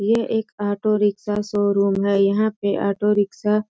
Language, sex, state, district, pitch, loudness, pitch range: Hindi, female, Bihar, Sitamarhi, 205 Hz, -20 LUFS, 200-215 Hz